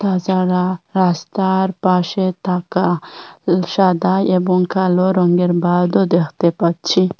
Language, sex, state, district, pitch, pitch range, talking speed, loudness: Bengali, female, Assam, Hailakandi, 185 Hz, 175-190 Hz, 90 wpm, -16 LUFS